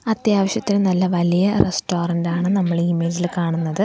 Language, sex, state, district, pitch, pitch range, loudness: Malayalam, female, Kerala, Thiruvananthapuram, 180 Hz, 170-200 Hz, -19 LUFS